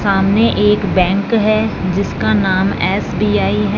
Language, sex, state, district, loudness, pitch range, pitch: Hindi, female, Punjab, Fazilka, -14 LUFS, 190-215 Hz, 200 Hz